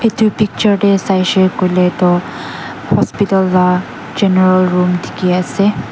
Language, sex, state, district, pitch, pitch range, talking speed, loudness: Nagamese, female, Nagaland, Dimapur, 185 Hz, 180-200 Hz, 130 wpm, -13 LUFS